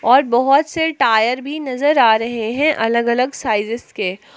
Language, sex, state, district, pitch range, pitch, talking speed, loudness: Hindi, female, Jharkhand, Palamu, 225-280 Hz, 245 Hz, 180 wpm, -16 LUFS